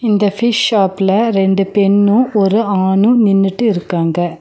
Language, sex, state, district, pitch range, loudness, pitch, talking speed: Tamil, female, Tamil Nadu, Nilgiris, 195-220 Hz, -13 LUFS, 200 Hz, 120 wpm